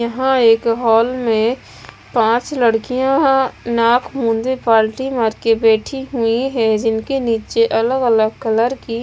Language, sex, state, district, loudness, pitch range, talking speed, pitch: Hindi, female, Bihar, West Champaran, -16 LUFS, 225-260 Hz, 135 wpm, 235 Hz